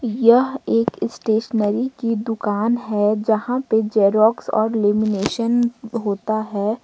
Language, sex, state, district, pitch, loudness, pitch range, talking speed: Hindi, female, Jharkhand, Ranchi, 220 Hz, -19 LUFS, 210-235 Hz, 115 wpm